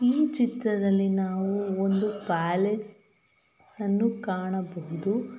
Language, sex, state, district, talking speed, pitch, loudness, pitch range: Kannada, female, Karnataka, Mysore, 80 wpm, 200 Hz, -27 LUFS, 190-215 Hz